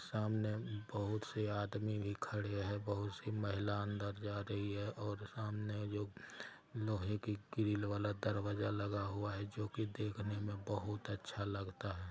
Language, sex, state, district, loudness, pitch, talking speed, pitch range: Hindi, male, Bihar, Gopalganj, -42 LUFS, 105 Hz, 165 wpm, 100-105 Hz